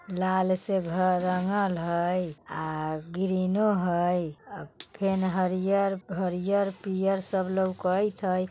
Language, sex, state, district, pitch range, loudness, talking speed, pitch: Bajjika, female, Bihar, Vaishali, 180-195 Hz, -28 LUFS, 115 wpm, 185 Hz